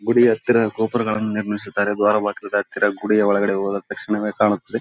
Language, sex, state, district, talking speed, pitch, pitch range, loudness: Kannada, male, Karnataka, Bellary, 160 wpm, 105 Hz, 105-110 Hz, -20 LUFS